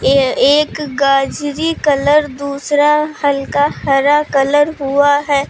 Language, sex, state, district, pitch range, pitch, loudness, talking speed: Hindi, female, Uttar Pradesh, Lucknow, 275-295 Hz, 285 Hz, -14 LUFS, 110 wpm